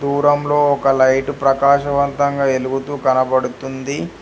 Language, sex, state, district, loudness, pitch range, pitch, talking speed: Telugu, male, Telangana, Hyderabad, -16 LUFS, 135-140 Hz, 140 Hz, 100 wpm